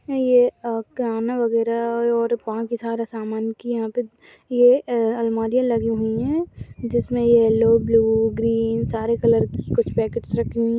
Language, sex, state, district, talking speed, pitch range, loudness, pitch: Hindi, female, Maharashtra, Solapur, 150 wpm, 225-240 Hz, -21 LUFS, 230 Hz